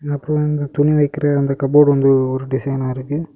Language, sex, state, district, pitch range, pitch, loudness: Tamil, male, Tamil Nadu, Kanyakumari, 135-150 Hz, 145 Hz, -17 LUFS